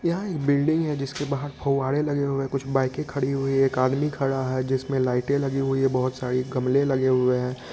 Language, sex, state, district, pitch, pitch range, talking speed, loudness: Hindi, male, Bihar, Madhepura, 135 Hz, 130-140 Hz, 235 wpm, -24 LUFS